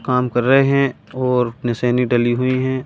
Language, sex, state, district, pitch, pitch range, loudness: Hindi, male, Madhya Pradesh, Katni, 125 Hz, 120-130 Hz, -17 LUFS